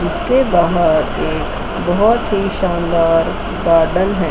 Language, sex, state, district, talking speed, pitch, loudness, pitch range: Hindi, female, Chandigarh, Chandigarh, 125 wpm, 175 Hz, -15 LUFS, 170-205 Hz